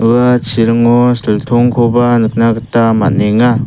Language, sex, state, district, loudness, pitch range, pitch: Garo, male, Meghalaya, South Garo Hills, -11 LUFS, 115-120 Hz, 120 Hz